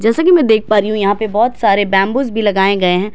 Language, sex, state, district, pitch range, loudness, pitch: Hindi, female, Bihar, Katihar, 200-225 Hz, -13 LUFS, 210 Hz